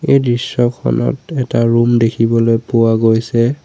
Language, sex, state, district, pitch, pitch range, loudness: Assamese, male, Assam, Sonitpur, 115 Hz, 115-125 Hz, -14 LUFS